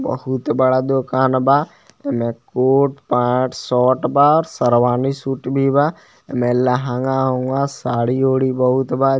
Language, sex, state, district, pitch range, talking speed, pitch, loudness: Bhojpuri, male, Bihar, Muzaffarpur, 125-135 Hz, 125 wpm, 130 Hz, -17 LUFS